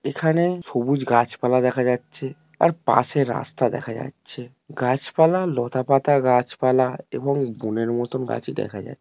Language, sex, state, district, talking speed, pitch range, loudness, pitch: Bengali, male, West Bengal, Paschim Medinipur, 135 wpm, 125-145 Hz, -22 LUFS, 130 Hz